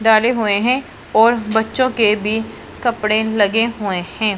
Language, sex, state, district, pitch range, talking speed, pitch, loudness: Hindi, female, Punjab, Pathankot, 215-235 Hz, 150 wpm, 220 Hz, -17 LUFS